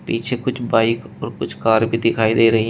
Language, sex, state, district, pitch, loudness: Hindi, male, Uttar Pradesh, Shamli, 115 Hz, -18 LUFS